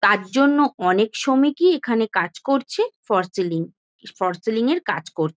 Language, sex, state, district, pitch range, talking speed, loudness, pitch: Bengali, female, West Bengal, Jhargram, 185-275 Hz, 145 wpm, -21 LUFS, 220 Hz